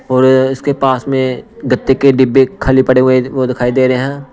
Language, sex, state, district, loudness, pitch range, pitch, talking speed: Hindi, male, Punjab, Pathankot, -12 LUFS, 130-135 Hz, 130 Hz, 210 wpm